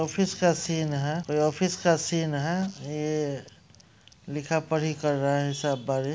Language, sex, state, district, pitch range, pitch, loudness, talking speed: Hindi, male, Bihar, Muzaffarpur, 145-165 Hz, 155 Hz, -27 LUFS, 175 wpm